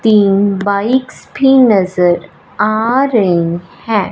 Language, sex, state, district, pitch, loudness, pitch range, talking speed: Hindi, male, Punjab, Fazilka, 205 Hz, -12 LUFS, 195-235 Hz, 100 wpm